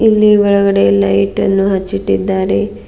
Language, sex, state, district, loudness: Kannada, female, Karnataka, Bidar, -12 LUFS